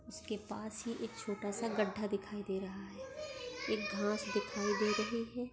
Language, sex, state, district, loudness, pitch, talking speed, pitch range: Hindi, female, Maharashtra, Solapur, -39 LUFS, 210 Hz, 175 wpm, 205-230 Hz